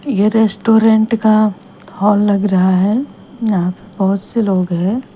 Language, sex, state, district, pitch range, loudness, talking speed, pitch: Hindi, female, Himachal Pradesh, Shimla, 195-220 Hz, -14 LUFS, 140 wpm, 205 Hz